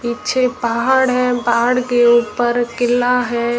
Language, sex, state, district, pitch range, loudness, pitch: Hindi, female, Rajasthan, Jaisalmer, 240-250 Hz, -15 LUFS, 245 Hz